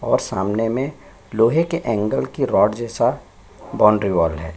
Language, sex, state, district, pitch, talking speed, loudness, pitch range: Hindi, male, Chhattisgarh, Sukma, 105 Hz, 155 wpm, -19 LUFS, 95-120 Hz